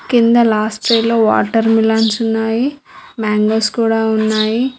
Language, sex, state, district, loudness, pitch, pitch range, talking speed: Telugu, female, Telangana, Mahabubabad, -14 LUFS, 225 Hz, 220-230 Hz, 125 wpm